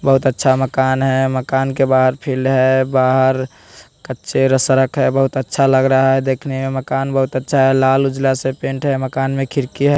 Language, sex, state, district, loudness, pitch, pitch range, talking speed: Hindi, male, Bihar, West Champaran, -16 LUFS, 135 Hz, 130-135 Hz, 200 wpm